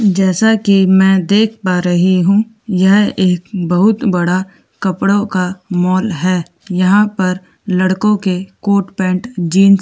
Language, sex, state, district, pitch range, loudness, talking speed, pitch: Hindi, female, Delhi, New Delhi, 185-205 Hz, -13 LUFS, 140 wpm, 190 Hz